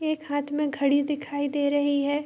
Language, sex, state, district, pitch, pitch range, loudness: Hindi, female, Bihar, Bhagalpur, 285 Hz, 285-295 Hz, -26 LUFS